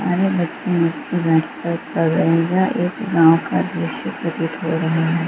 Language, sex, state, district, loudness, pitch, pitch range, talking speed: Hindi, female, Bihar, Gaya, -19 LUFS, 170 Hz, 165-175 Hz, 195 wpm